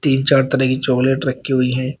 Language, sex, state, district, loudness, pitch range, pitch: Hindi, male, Uttar Pradesh, Shamli, -17 LUFS, 130-135 Hz, 130 Hz